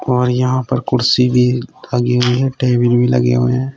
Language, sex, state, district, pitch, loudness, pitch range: Hindi, male, Uttar Pradesh, Shamli, 125 Hz, -15 LUFS, 120-130 Hz